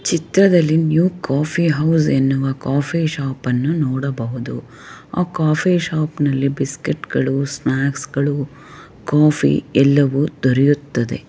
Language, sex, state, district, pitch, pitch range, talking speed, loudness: Kannada, female, Karnataka, Chamarajanagar, 145 Hz, 135-160 Hz, 85 wpm, -18 LUFS